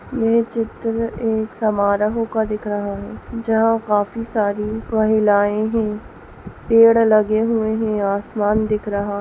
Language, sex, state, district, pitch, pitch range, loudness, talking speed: Hindi, female, Bihar, East Champaran, 215 Hz, 210-225 Hz, -19 LUFS, 135 wpm